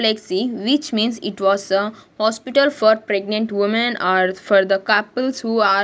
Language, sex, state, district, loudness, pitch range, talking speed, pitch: English, female, Punjab, Kapurthala, -18 LUFS, 200-230 Hz, 175 wpm, 215 Hz